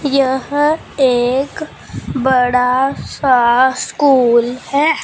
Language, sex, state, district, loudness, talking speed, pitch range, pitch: Hindi, female, Punjab, Fazilka, -14 LUFS, 70 wpm, 250-280 Hz, 260 Hz